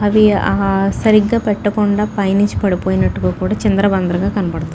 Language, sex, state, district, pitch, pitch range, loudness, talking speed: Telugu, female, Telangana, Nalgonda, 200 Hz, 190-210 Hz, -15 LUFS, 115 wpm